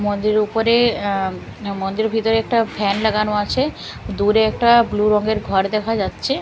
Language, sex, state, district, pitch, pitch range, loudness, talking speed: Bengali, female, Bihar, Katihar, 215 Hz, 205-225 Hz, -18 LUFS, 150 wpm